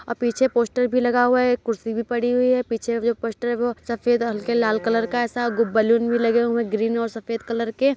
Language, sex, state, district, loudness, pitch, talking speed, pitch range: Hindi, male, Uttar Pradesh, Jalaun, -21 LUFS, 235 Hz, 265 wpm, 230-240 Hz